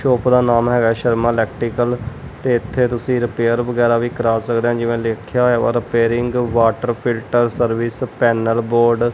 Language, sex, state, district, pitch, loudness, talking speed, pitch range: Punjabi, male, Punjab, Kapurthala, 120 Hz, -17 LUFS, 165 wpm, 115-120 Hz